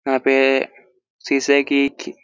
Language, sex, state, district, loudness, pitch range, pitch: Hindi, male, Chhattisgarh, Korba, -18 LUFS, 135-140 Hz, 140 Hz